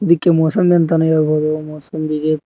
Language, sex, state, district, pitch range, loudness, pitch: Kannada, male, Karnataka, Koppal, 155-170 Hz, -15 LUFS, 160 Hz